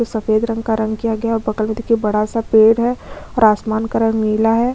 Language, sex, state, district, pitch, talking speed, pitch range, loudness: Hindi, female, Chhattisgarh, Kabirdham, 225 Hz, 280 wpm, 220-230 Hz, -17 LUFS